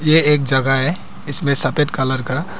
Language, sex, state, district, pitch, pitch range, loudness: Hindi, male, Arunachal Pradesh, Papum Pare, 140 Hz, 130-155 Hz, -16 LUFS